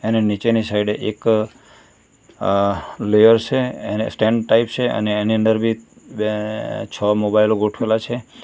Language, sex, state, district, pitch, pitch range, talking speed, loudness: Gujarati, male, Gujarat, Valsad, 110 Hz, 105-115 Hz, 140 wpm, -19 LUFS